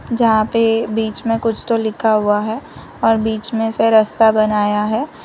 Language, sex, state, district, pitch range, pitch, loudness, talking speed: Hindi, female, Gujarat, Valsad, 215-225 Hz, 220 Hz, -16 LUFS, 185 wpm